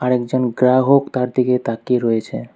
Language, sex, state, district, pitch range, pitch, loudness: Bengali, male, West Bengal, Alipurduar, 125-130 Hz, 125 Hz, -17 LUFS